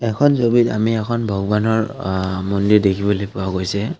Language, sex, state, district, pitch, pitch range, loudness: Assamese, male, Assam, Kamrup Metropolitan, 105 Hz, 100-115 Hz, -18 LUFS